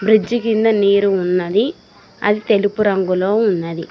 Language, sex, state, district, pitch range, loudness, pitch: Telugu, female, Telangana, Mahabubabad, 190-220 Hz, -16 LUFS, 205 Hz